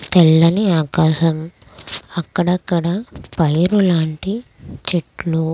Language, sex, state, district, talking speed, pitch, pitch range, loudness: Telugu, female, Andhra Pradesh, Krishna, 65 wpm, 170 Hz, 160-180 Hz, -17 LUFS